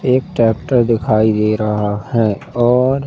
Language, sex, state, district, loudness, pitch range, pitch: Hindi, male, Madhya Pradesh, Katni, -15 LUFS, 110-130 Hz, 115 Hz